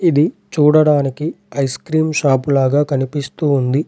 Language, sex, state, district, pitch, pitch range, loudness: Telugu, male, Telangana, Adilabad, 145 Hz, 135-155 Hz, -16 LUFS